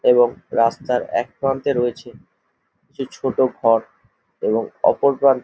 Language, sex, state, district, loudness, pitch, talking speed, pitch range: Bengali, male, West Bengal, Jhargram, -20 LUFS, 125 Hz, 100 wpm, 120-135 Hz